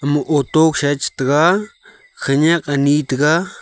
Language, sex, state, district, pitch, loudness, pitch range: Wancho, male, Arunachal Pradesh, Longding, 145 Hz, -16 LUFS, 140-160 Hz